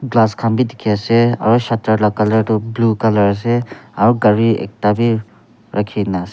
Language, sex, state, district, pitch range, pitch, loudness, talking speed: Nagamese, male, Nagaland, Kohima, 105-115 Hz, 110 Hz, -15 LUFS, 190 wpm